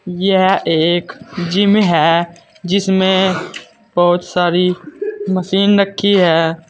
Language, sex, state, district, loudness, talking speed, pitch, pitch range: Hindi, male, Uttar Pradesh, Saharanpur, -14 LUFS, 90 wpm, 185 Hz, 175-200 Hz